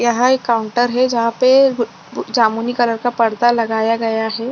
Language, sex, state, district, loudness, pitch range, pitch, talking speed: Hindi, female, Chhattisgarh, Bilaspur, -16 LUFS, 225-245 Hz, 235 Hz, 170 wpm